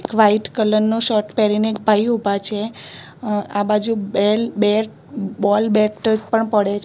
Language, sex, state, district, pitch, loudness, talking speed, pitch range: Gujarati, female, Gujarat, Gandhinagar, 215 Hz, -18 LUFS, 150 wpm, 210-220 Hz